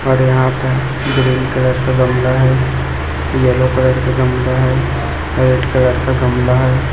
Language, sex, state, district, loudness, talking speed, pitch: Hindi, male, Chhattisgarh, Raipur, -14 LUFS, 155 wpm, 130 Hz